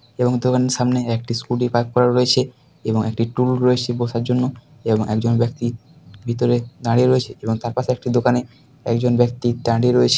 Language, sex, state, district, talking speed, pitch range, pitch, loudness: Bengali, male, West Bengal, Paschim Medinipur, 170 wpm, 115-125 Hz, 120 Hz, -19 LUFS